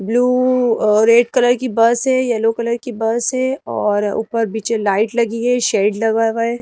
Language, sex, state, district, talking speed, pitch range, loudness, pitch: Hindi, female, Madhya Pradesh, Bhopal, 200 wpm, 225-245 Hz, -16 LUFS, 230 Hz